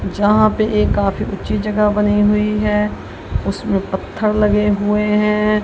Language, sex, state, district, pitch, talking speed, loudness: Hindi, female, Punjab, Kapurthala, 210 Hz, 150 wpm, -16 LUFS